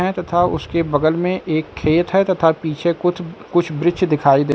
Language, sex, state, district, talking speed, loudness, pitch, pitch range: Hindi, male, Uttar Pradesh, Lucknow, 210 wpm, -18 LUFS, 170 Hz, 155-180 Hz